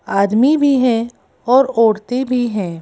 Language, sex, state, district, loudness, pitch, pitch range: Hindi, female, Madhya Pradesh, Bhopal, -15 LUFS, 240 Hz, 220-260 Hz